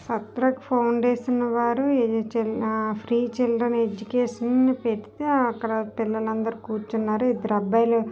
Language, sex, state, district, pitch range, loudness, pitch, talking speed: Telugu, female, Andhra Pradesh, Srikakulam, 220-245 Hz, -24 LUFS, 230 Hz, 120 wpm